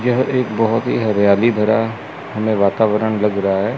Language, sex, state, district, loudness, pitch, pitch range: Hindi, male, Chandigarh, Chandigarh, -17 LUFS, 110 Hz, 105-115 Hz